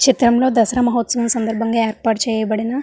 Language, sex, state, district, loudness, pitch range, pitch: Telugu, female, Andhra Pradesh, Visakhapatnam, -17 LUFS, 225-240 Hz, 230 Hz